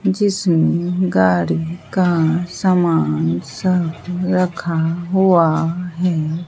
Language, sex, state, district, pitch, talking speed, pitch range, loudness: Hindi, female, Bihar, Katihar, 175 Hz, 75 wpm, 160-180 Hz, -17 LUFS